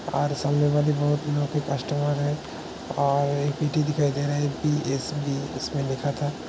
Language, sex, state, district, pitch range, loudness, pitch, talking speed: Hindi, male, Uttar Pradesh, Hamirpur, 140-145 Hz, -25 LUFS, 145 Hz, 140 wpm